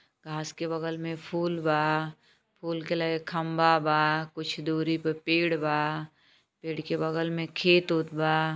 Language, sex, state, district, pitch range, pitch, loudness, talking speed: Bhojpuri, female, Uttar Pradesh, Gorakhpur, 155-165 Hz, 160 Hz, -28 LUFS, 160 wpm